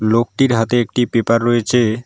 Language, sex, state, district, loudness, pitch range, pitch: Bengali, male, West Bengal, Alipurduar, -16 LUFS, 115-120 Hz, 115 Hz